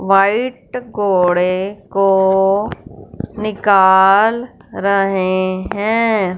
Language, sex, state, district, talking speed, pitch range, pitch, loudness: Hindi, female, Punjab, Fazilka, 55 wpm, 190-215 Hz, 195 Hz, -15 LUFS